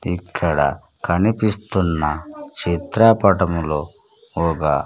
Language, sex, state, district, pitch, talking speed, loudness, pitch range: Telugu, male, Andhra Pradesh, Sri Satya Sai, 90 Hz, 50 wpm, -19 LUFS, 85-110 Hz